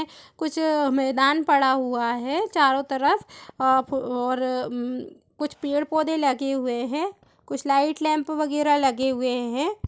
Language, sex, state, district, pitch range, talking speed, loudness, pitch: Hindi, female, Chhattisgarh, Raigarh, 260-305 Hz, 140 wpm, -23 LUFS, 275 Hz